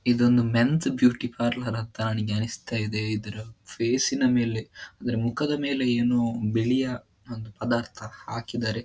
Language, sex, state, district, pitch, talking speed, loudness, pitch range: Kannada, male, Karnataka, Dakshina Kannada, 120 Hz, 120 wpm, -26 LUFS, 110-120 Hz